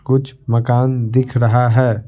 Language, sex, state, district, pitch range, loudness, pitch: Hindi, male, Bihar, Patna, 120-130 Hz, -16 LUFS, 125 Hz